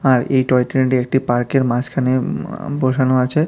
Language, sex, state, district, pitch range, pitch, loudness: Bengali, male, Tripura, West Tripura, 125-135 Hz, 130 Hz, -17 LUFS